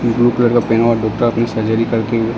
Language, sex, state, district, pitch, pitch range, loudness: Hindi, male, Uttar Pradesh, Ghazipur, 115 Hz, 115-120 Hz, -15 LUFS